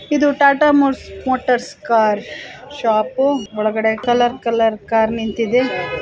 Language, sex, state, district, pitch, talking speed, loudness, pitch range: Kannada, female, Karnataka, Raichur, 240 Hz, 100 wpm, -17 LUFS, 220-275 Hz